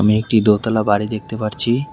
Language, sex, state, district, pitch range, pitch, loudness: Bengali, male, West Bengal, Cooch Behar, 105-115 Hz, 110 Hz, -17 LUFS